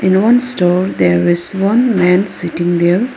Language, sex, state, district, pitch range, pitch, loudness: English, female, Arunachal Pradesh, Lower Dibang Valley, 175-205 Hz, 180 Hz, -13 LUFS